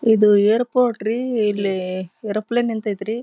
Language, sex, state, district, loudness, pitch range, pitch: Kannada, female, Karnataka, Dharwad, -20 LUFS, 205-235 Hz, 220 Hz